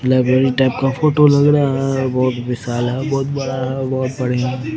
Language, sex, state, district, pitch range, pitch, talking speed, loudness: Hindi, female, Bihar, Jamui, 125-135 Hz, 130 Hz, 200 wpm, -17 LUFS